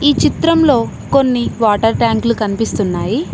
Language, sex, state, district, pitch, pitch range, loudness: Telugu, female, Telangana, Mahabubabad, 235 Hz, 225-280 Hz, -14 LUFS